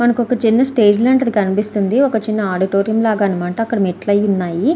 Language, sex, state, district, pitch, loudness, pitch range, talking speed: Telugu, female, Andhra Pradesh, Srikakulam, 215 Hz, -15 LUFS, 195-240 Hz, 165 wpm